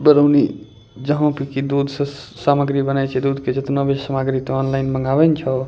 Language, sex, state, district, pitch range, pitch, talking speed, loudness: Angika, male, Bihar, Bhagalpur, 135-140 Hz, 135 Hz, 210 wpm, -19 LUFS